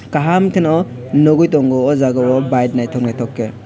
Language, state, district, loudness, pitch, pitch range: Kokborok, Tripura, West Tripura, -14 LUFS, 130 Hz, 125-155 Hz